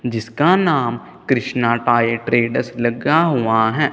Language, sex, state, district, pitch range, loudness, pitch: Hindi, male, Punjab, Kapurthala, 115-145 Hz, -17 LUFS, 120 Hz